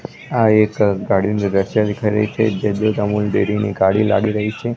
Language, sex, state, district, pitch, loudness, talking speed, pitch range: Gujarati, male, Gujarat, Gandhinagar, 105 Hz, -17 LUFS, 200 wpm, 105-110 Hz